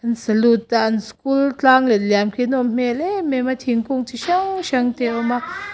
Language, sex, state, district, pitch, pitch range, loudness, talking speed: Mizo, female, Mizoram, Aizawl, 245 Hz, 235-275 Hz, -19 LUFS, 240 wpm